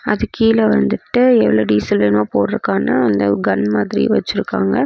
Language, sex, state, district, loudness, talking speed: Tamil, female, Tamil Nadu, Namakkal, -15 LUFS, 135 wpm